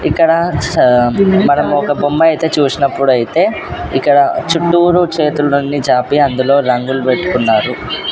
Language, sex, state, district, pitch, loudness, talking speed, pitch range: Telugu, male, Andhra Pradesh, Sri Satya Sai, 145 Hz, -12 LUFS, 120 wpm, 130-165 Hz